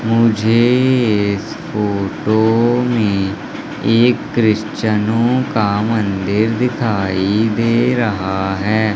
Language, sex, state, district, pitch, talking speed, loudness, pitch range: Hindi, male, Madhya Pradesh, Katni, 110 Hz, 80 wpm, -16 LUFS, 100-115 Hz